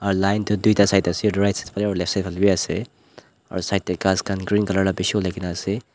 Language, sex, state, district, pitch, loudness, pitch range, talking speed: Nagamese, male, Nagaland, Dimapur, 100 Hz, -21 LUFS, 95-105 Hz, 250 wpm